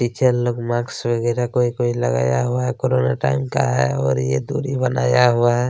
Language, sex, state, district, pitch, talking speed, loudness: Hindi, male, Chhattisgarh, Kabirdham, 120 Hz, 180 wpm, -19 LUFS